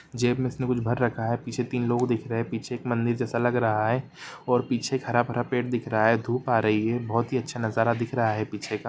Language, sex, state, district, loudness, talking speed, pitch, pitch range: Hindi, male, Jharkhand, Jamtara, -26 LUFS, 285 wpm, 120 Hz, 115-125 Hz